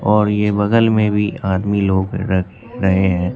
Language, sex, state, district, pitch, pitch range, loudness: Hindi, male, Bihar, Katihar, 100 Hz, 95-105 Hz, -17 LUFS